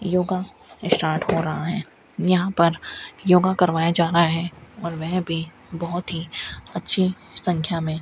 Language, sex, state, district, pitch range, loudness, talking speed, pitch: Hindi, female, Rajasthan, Bikaner, 165-185 Hz, -23 LUFS, 155 wpm, 170 Hz